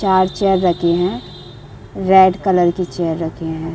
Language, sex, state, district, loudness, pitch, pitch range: Hindi, female, Bihar, Saran, -16 LUFS, 180 Hz, 170-190 Hz